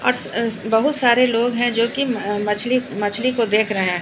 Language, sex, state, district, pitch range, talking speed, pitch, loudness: Hindi, female, Bihar, Patna, 210-245 Hz, 210 wpm, 230 Hz, -18 LUFS